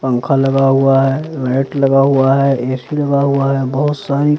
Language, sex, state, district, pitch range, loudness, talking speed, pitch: Hindi, male, Bihar, Patna, 135-140 Hz, -14 LUFS, 190 wpm, 135 Hz